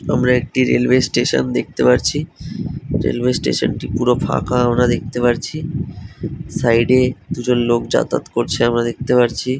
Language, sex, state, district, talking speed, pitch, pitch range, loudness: Bengali, male, West Bengal, North 24 Parganas, 145 wpm, 120 Hz, 115-125 Hz, -17 LUFS